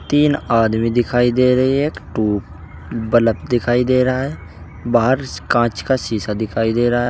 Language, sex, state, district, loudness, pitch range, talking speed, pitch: Hindi, male, Uttar Pradesh, Saharanpur, -17 LUFS, 110-125 Hz, 175 wpm, 120 Hz